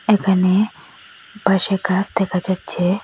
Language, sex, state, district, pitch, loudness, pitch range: Bengali, female, Assam, Hailakandi, 195 Hz, -18 LUFS, 185-200 Hz